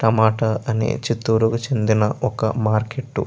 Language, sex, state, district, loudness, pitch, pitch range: Telugu, male, Andhra Pradesh, Chittoor, -20 LUFS, 110 Hz, 110-120 Hz